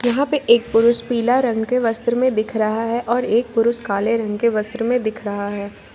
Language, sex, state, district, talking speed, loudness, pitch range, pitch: Hindi, female, Jharkhand, Ranchi, 240 wpm, -19 LUFS, 220-240 Hz, 230 Hz